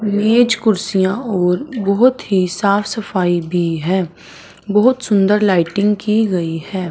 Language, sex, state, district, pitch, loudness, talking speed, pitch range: Hindi, male, Punjab, Fazilka, 200 Hz, -16 LUFS, 130 wpm, 180-215 Hz